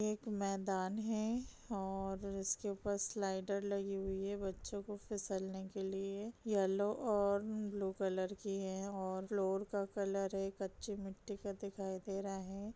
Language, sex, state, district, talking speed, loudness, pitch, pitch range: Hindi, female, Bihar, Saharsa, 160 wpm, -41 LUFS, 195 Hz, 195-205 Hz